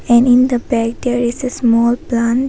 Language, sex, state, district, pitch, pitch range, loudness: English, female, Arunachal Pradesh, Papum Pare, 240 Hz, 235-250 Hz, -14 LUFS